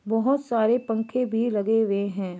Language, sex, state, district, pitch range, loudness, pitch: Hindi, female, Chhattisgarh, Bastar, 205-235 Hz, -24 LUFS, 225 Hz